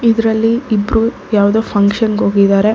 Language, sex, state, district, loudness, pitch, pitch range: Kannada, female, Karnataka, Bangalore, -13 LUFS, 220 Hz, 205-225 Hz